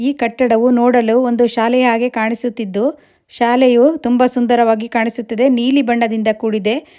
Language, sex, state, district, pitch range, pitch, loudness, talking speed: Kannada, female, Karnataka, Shimoga, 230-250 Hz, 240 Hz, -14 LUFS, 110 wpm